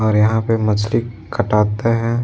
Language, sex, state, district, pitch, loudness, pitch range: Hindi, male, Bihar, Jahanabad, 110 Hz, -17 LUFS, 105-115 Hz